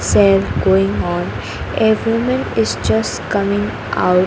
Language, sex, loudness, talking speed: English, female, -16 LUFS, 125 wpm